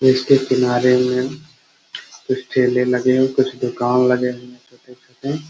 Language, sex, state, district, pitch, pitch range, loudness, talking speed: Hindi, male, Bihar, Muzaffarpur, 125 Hz, 125-130 Hz, -17 LUFS, 150 wpm